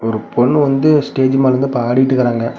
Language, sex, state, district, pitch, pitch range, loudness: Tamil, male, Tamil Nadu, Namakkal, 130 Hz, 120-135 Hz, -14 LUFS